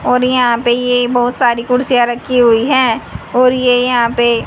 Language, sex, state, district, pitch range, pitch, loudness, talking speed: Hindi, female, Haryana, Charkhi Dadri, 240-250 Hz, 245 Hz, -13 LUFS, 190 wpm